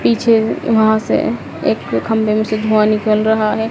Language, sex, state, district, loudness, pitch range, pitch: Hindi, female, Madhya Pradesh, Dhar, -15 LUFS, 215-220 Hz, 220 Hz